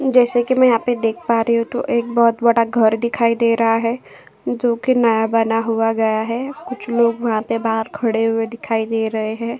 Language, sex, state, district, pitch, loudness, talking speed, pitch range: Hindi, female, Uttar Pradesh, Jyotiba Phule Nagar, 230 Hz, -18 LUFS, 220 wpm, 225-240 Hz